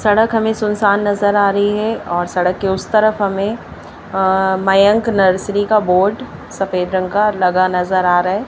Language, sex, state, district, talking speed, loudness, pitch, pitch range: Hindi, male, Madhya Pradesh, Bhopal, 185 wpm, -15 LUFS, 200 Hz, 185-210 Hz